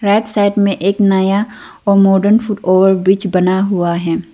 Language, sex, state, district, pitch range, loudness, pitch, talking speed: Hindi, female, Arunachal Pradesh, Lower Dibang Valley, 185-205 Hz, -13 LUFS, 195 Hz, 165 wpm